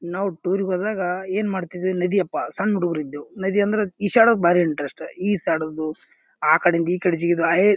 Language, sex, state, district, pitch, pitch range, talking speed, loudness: Kannada, male, Karnataka, Bijapur, 180 Hz, 170-200 Hz, 175 wpm, -21 LUFS